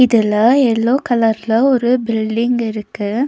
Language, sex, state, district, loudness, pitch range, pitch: Tamil, female, Tamil Nadu, Nilgiris, -15 LUFS, 220-245 Hz, 230 Hz